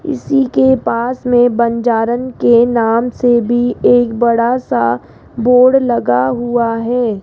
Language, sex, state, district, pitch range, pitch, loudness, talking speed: Hindi, female, Rajasthan, Jaipur, 230-250 Hz, 240 Hz, -13 LUFS, 135 wpm